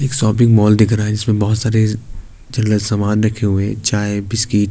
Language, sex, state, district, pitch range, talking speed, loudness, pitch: Hindi, male, Uttarakhand, Tehri Garhwal, 105-110 Hz, 215 wpm, -15 LUFS, 105 Hz